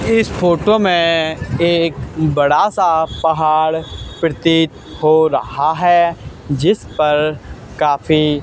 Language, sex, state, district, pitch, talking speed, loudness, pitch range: Hindi, male, Haryana, Charkhi Dadri, 160 Hz, 100 wpm, -15 LUFS, 150-170 Hz